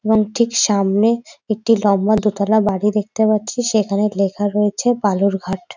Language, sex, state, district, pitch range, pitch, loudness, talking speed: Bengali, female, West Bengal, Dakshin Dinajpur, 200-220 Hz, 210 Hz, -17 LUFS, 135 wpm